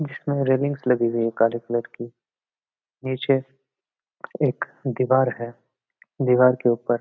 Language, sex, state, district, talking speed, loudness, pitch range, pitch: Marwari, male, Rajasthan, Nagaur, 130 wpm, -22 LUFS, 120-135 Hz, 125 Hz